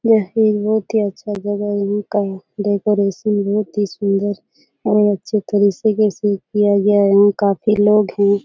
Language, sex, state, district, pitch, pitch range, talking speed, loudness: Hindi, female, Bihar, Jahanabad, 205 Hz, 200-210 Hz, 165 wpm, -17 LUFS